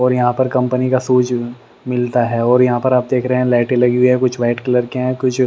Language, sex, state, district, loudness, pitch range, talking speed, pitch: Hindi, male, Haryana, Rohtak, -15 LUFS, 120-125 Hz, 275 wpm, 125 Hz